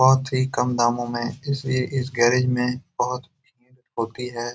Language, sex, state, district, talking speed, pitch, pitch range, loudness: Hindi, male, Bihar, Jamui, 160 wpm, 125 Hz, 120-130 Hz, -23 LUFS